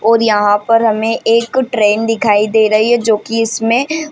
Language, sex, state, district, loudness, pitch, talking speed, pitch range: Hindi, female, Bihar, Madhepura, -13 LUFS, 225 Hz, 205 wpm, 215-230 Hz